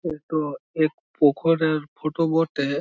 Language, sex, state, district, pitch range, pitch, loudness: Bengali, male, West Bengal, Malda, 150-165 Hz, 155 Hz, -23 LUFS